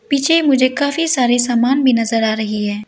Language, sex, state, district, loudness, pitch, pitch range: Hindi, female, Arunachal Pradesh, Lower Dibang Valley, -15 LUFS, 250 Hz, 225-280 Hz